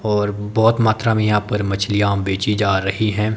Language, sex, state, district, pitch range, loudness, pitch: Hindi, male, Himachal Pradesh, Shimla, 100-110 Hz, -18 LUFS, 105 Hz